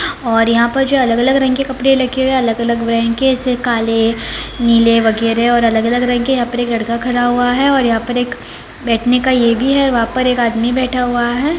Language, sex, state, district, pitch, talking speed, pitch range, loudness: Hindi, female, Bihar, Begusarai, 245 Hz, 235 wpm, 230-255 Hz, -14 LUFS